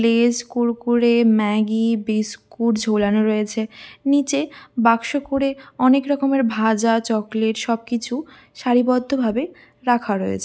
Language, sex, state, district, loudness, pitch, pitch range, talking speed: Bengali, female, West Bengal, Dakshin Dinajpur, -20 LUFS, 235 Hz, 220-265 Hz, 105 wpm